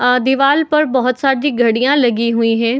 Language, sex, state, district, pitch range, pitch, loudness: Hindi, female, Bihar, Madhepura, 235-275 Hz, 255 Hz, -14 LUFS